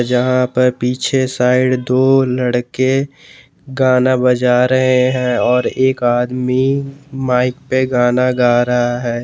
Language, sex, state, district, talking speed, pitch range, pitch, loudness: Hindi, male, Jharkhand, Garhwa, 125 wpm, 125-130 Hz, 125 Hz, -14 LUFS